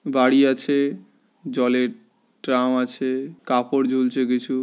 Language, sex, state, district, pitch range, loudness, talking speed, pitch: Bengali, male, West Bengal, Paschim Medinipur, 125-135 Hz, -21 LUFS, 105 wpm, 130 Hz